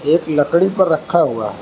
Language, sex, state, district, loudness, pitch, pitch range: Hindi, male, Karnataka, Bangalore, -16 LUFS, 160 Hz, 145-175 Hz